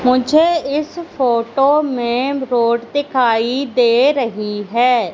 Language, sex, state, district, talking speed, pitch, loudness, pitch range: Hindi, female, Madhya Pradesh, Katni, 105 wpm, 250 Hz, -16 LUFS, 235-280 Hz